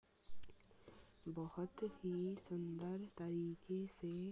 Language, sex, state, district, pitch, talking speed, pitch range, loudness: Hindi, female, Uttarakhand, Tehri Garhwal, 175 Hz, 85 wpm, 160-185 Hz, -47 LUFS